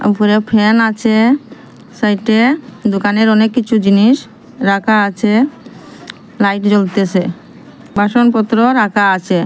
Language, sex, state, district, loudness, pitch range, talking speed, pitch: Bengali, female, Assam, Hailakandi, -13 LUFS, 205-235 Hz, 95 wpm, 220 Hz